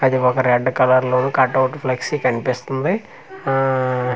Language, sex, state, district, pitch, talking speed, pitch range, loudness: Telugu, male, Andhra Pradesh, Manyam, 130 Hz, 145 wpm, 130-135 Hz, -18 LUFS